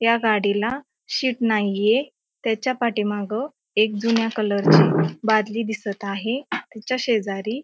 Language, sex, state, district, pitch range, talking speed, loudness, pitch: Marathi, female, Maharashtra, Pune, 205-235 Hz, 125 wpm, -22 LUFS, 220 Hz